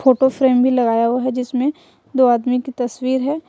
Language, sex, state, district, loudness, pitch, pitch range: Hindi, female, Jharkhand, Ranchi, -17 LUFS, 255 Hz, 250-265 Hz